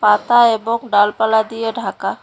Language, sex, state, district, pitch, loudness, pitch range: Bengali, female, West Bengal, Cooch Behar, 225 Hz, -16 LUFS, 215-235 Hz